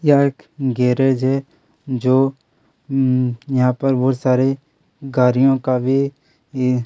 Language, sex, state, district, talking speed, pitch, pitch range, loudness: Hindi, male, Chhattisgarh, Kabirdham, 130 wpm, 135 Hz, 125-135 Hz, -18 LUFS